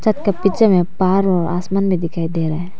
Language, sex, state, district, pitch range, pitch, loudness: Hindi, female, Arunachal Pradesh, Papum Pare, 175-195 Hz, 185 Hz, -17 LUFS